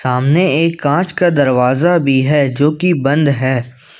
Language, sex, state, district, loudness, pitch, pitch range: Hindi, male, Jharkhand, Ranchi, -13 LUFS, 145 Hz, 130-165 Hz